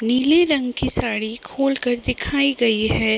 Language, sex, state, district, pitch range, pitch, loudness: Hindi, female, Uttar Pradesh, Deoria, 225-275 Hz, 250 Hz, -19 LUFS